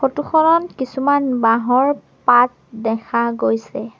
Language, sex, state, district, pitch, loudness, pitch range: Assamese, female, Assam, Sonitpur, 250 Hz, -17 LUFS, 230-285 Hz